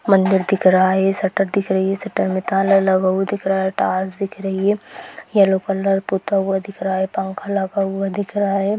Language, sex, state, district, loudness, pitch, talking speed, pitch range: Hindi, male, Maharashtra, Nagpur, -19 LUFS, 195 Hz, 225 wpm, 190-200 Hz